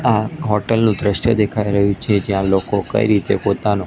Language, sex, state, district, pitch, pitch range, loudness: Gujarati, male, Gujarat, Gandhinagar, 105 Hz, 100-110 Hz, -17 LUFS